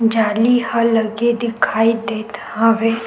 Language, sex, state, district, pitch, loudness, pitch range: Chhattisgarhi, female, Chhattisgarh, Sukma, 225 Hz, -17 LUFS, 220-230 Hz